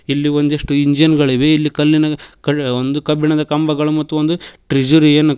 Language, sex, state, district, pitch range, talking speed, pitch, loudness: Kannada, male, Karnataka, Koppal, 145-155 Hz, 155 wpm, 150 Hz, -15 LUFS